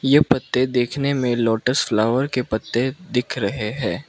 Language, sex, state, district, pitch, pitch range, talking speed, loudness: Hindi, male, Mizoram, Aizawl, 125 Hz, 115-135 Hz, 160 wpm, -21 LUFS